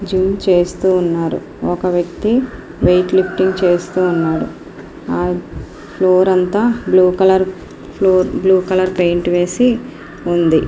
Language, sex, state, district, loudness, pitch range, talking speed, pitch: Telugu, female, Andhra Pradesh, Srikakulam, -15 LUFS, 175-190 Hz, 105 wpm, 185 Hz